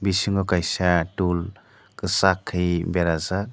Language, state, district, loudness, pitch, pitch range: Kokborok, Tripura, Dhalai, -23 LUFS, 90 Hz, 85-95 Hz